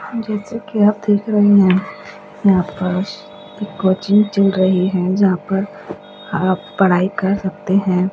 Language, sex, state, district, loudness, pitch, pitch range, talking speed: Hindi, female, Delhi, New Delhi, -16 LUFS, 195 Hz, 185-205 Hz, 150 wpm